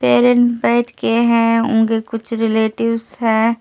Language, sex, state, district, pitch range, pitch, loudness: Hindi, female, Delhi, New Delhi, 225-235 Hz, 230 Hz, -16 LUFS